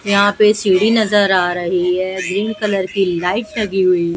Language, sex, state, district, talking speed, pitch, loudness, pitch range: Hindi, female, Odisha, Malkangiri, 185 wpm, 195 Hz, -15 LUFS, 180-210 Hz